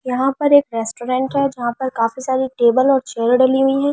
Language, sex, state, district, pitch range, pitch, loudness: Hindi, female, Delhi, New Delhi, 240-270 Hz, 260 Hz, -17 LUFS